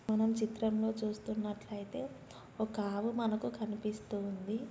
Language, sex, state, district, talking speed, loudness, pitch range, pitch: Telugu, female, Telangana, Nalgonda, 115 wpm, -37 LUFS, 210-220 Hz, 215 Hz